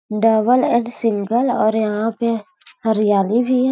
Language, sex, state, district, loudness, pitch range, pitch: Hindi, female, Uttar Pradesh, Gorakhpur, -18 LUFS, 215-240 Hz, 225 Hz